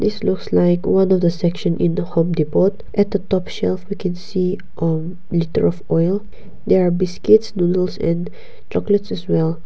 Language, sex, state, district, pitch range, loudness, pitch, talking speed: English, female, Nagaland, Kohima, 165-195 Hz, -19 LUFS, 180 Hz, 185 wpm